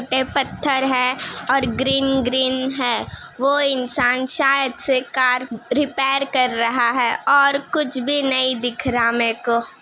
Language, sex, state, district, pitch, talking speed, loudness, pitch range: Hindi, female, Bihar, Begusarai, 260 Hz, 145 wpm, -18 LUFS, 250-275 Hz